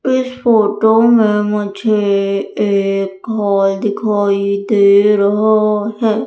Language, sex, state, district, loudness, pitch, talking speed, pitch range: Hindi, female, Madhya Pradesh, Umaria, -14 LUFS, 210 Hz, 95 wpm, 200-220 Hz